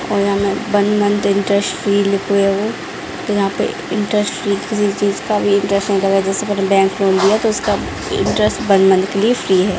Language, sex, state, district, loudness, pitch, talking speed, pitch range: Hindi, female, Bihar, Darbhanga, -16 LUFS, 200 Hz, 225 wpm, 195-205 Hz